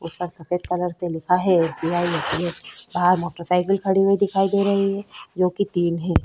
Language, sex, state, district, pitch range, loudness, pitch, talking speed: Hindi, female, Chhattisgarh, Korba, 175-195 Hz, -22 LUFS, 180 Hz, 240 wpm